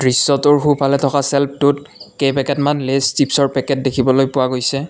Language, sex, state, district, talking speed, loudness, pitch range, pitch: Assamese, male, Assam, Kamrup Metropolitan, 145 wpm, -16 LUFS, 135-140 Hz, 140 Hz